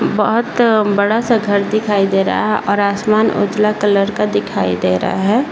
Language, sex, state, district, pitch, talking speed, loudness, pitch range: Hindi, male, Bihar, Jahanabad, 205 Hz, 195 wpm, -15 LUFS, 200-215 Hz